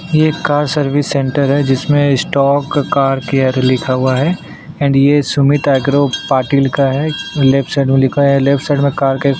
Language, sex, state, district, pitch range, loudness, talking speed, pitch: Hindi, male, Maharashtra, Aurangabad, 135-145 Hz, -13 LUFS, 200 wpm, 140 Hz